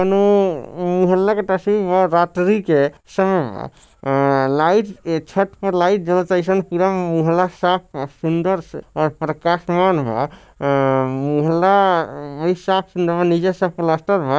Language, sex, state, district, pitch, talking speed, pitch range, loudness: Bhojpuri, male, Bihar, Gopalganj, 175 Hz, 125 wpm, 155-190 Hz, -18 LUFS